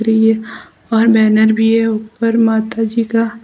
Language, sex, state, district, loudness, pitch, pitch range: Hindi, female, Uttar Pradesh, Lucknow, -13 LUFS, 225 Hz, 220-230 Hz